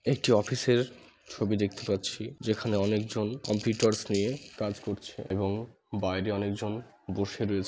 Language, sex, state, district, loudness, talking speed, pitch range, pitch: Bengali, male, West Bengal, Malda, -30 LUFS, 135 wpm, 100-115 Hz, 105 Hz